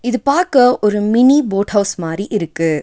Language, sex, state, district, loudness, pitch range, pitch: Tamil, female, Tamil Nadu, Nilgiris, -14 LUFS, 195-250 Hz, 210 Hz